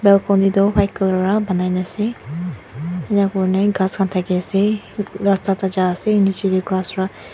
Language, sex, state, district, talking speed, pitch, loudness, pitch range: Nagamese, female, Nagaland, Dimapur, 165 wpm, 195 Hz, -18 LUFS, 185-200 Hz